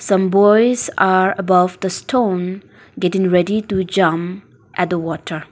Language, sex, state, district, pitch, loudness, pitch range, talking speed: English, female, Nagaland, Dimapur, 190 Hz, -16 LUFS, 180-195 Hz, 140 wpm